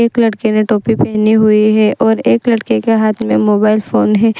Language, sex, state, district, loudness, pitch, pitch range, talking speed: Hindi, female, Gujarat, Valsad, -12 LUFS, 215 Hz, 215-225 Hz, 220 wpm